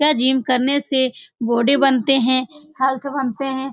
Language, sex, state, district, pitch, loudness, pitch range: Hindi, female, Bihar, Saran, 265 Hz, -17 LUFS, 255-280 Hz